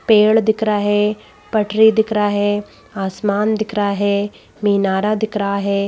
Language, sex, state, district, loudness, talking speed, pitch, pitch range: Hindi, female, Madhya Pradesh, Bhopal, -17 LUFS, 120 wpm, 205 Hz, 200-215 Hz